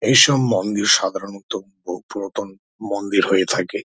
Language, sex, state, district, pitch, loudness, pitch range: Bengali, male, West Bengal, Dakshin Dinajpur, 100 Hz, -19 LUFS, 100-110 Hz